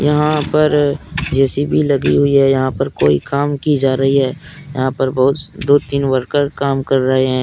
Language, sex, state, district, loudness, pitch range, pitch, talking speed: Hindi, male, Jharkhand, Deoghar, -15 LUFS, 135-145 Hz, 140 Hz, 195 wpm